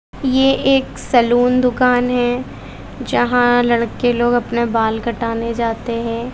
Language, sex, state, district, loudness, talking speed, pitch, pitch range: Hindi, female, Bihar, West Champaran, -16 LUFS, 125 wpm, 240 Hz, 235-250 Hz